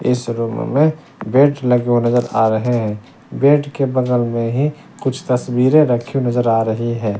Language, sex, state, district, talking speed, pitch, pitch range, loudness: Hindi, male, Bihar, West Champaran, 185 wpm, 125 Hz, 115-135 Hz, -17 LUFS